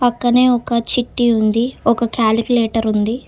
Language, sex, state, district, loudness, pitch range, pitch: Telugu, female, Telangana, Hyderabad, -16 LUFS, 225-245 Hz, 235 Hz